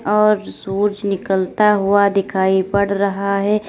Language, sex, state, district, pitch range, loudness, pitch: Hindi, female, Uttar Pradesh, Lalitpur, 195-205 Hz, -17 LUFS, 200 Hz